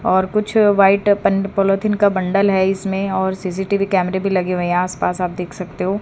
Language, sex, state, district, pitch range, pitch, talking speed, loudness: Hindi, female, Haryana, Charkhi Dadri, 185-200 Hz, 195 Hz, 200 wpm, -17 LUFS